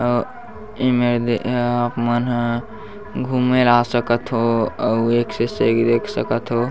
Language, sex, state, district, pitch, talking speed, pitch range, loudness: Chhattisgarhi, male, Chhattisgarh, Bastar, 120 Hz, 145 wpm, 115-120 Hz, -19 LUFS